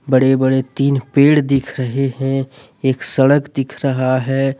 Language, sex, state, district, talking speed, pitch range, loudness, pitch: Hindi, male, Jharkhand, Deoghar, 155 wpm, 130-140 Hz, -16 LUFS, 135 Hz